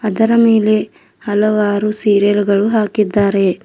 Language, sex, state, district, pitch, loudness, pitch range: Kannada, female, Karnataka, Bidar, 210 Hz, -14 LUFS, 205-215 Hz